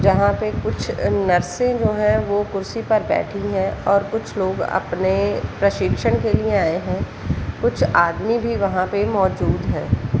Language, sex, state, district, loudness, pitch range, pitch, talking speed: Hindi, female, Jharkhand, Sahebganj, -20 LUFS, 185-210 Hz, 200 Hz, 160 wpm